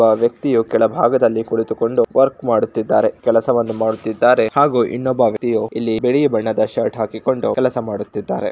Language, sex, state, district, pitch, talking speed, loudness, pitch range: Kannada, male, Karnataka, Shimoga, 115 Hz, 125 wpm, -17 LUFS, 110-120 Hz